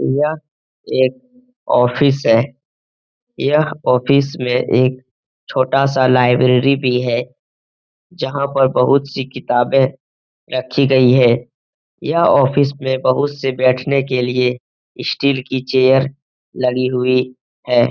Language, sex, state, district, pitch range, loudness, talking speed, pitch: Hindi, male, Bihar, Jamui, 125-140 Hz, -16 LUFS, 115 wpm, 130 Hz